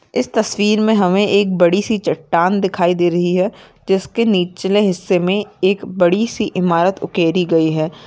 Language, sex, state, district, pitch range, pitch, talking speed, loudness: Hindi, female, Maharashtra, Aurangabad, 175-205 Hz, 185 Hz, 170 wpm, -16 LUFS